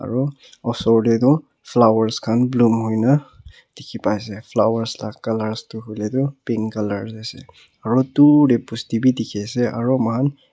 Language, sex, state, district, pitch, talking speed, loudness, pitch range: Nagamese, male, Nagaland, Kohima, 115 Hz, 165 wpm, -19 LUFS, 110-130 Hz